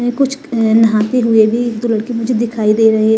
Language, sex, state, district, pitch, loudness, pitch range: Hindi, female, Himachal Pradesh, Shimla, 230 Hz, -13 LUFS, 220-240 Hz